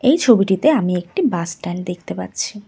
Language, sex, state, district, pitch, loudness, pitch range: Bengali, female, West Bengal, Cooch Behar, 190 Hz, -18 LUFS, 175-250 Hz